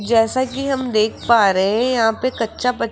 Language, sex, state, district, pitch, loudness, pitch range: Hindi, female, Rajasthan, Jaipur, 230 Hz, -18 LUFS, 225-255 Hz